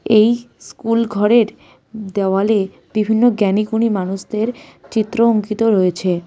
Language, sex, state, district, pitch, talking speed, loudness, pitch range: Bengali, female, West Bengal, Cooch Behar, 215 Hz, 95 wpm, -17 LUFS, 200-230 Hz